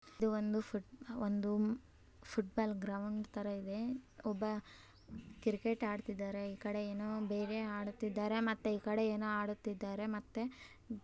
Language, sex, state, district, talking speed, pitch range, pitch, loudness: Kannada, male, Karnataka, Bellary, 115 wpm, 205-220 Hz, 215 Hz, -40 LUFS